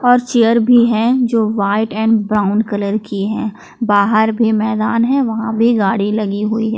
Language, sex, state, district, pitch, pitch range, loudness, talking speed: Hindi, female, Jharkhand, Palamu, 220 Hz, 210-230 Hz, -15 LUFS, 185 wpm